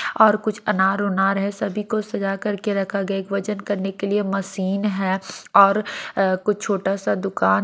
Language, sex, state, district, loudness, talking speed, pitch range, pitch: Hindi, female, Maharashtra, Mumbai Suburban, -21 LUFS, 180 wpm, 195-210 Hz, 200 Hz